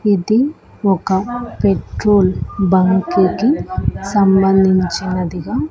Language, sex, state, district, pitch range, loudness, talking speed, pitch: Telugu, female, Andhra Pradesh, Annamaya, 185-210 Hz, -15 LUFS, 65 wpm, 195 Hz